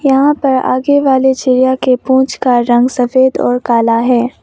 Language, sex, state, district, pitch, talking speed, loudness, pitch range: Hindi, female, Arunachal Pradesh, Longding, 260 Hz, 175 wpm, -11 LUFS, 245-265 Hz